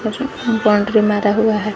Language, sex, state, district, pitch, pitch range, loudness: Hindi, female, Jharkhand, Garhwa, 215 Hz, 210-230 Hz, -16 LUFS